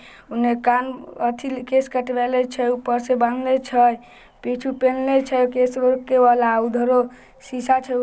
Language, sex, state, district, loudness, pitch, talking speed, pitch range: Maithili, female, Bihar, Samastipur, -20 LUFS, 250 Hz, 50 wpm, 245-260 Hz